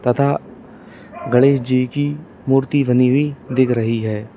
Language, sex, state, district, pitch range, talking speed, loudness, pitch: Hindi, male, Uttar Pradesh, Lalitpur, 125-140 Hz, 135 wpm, -17 LUFS, 130 Hz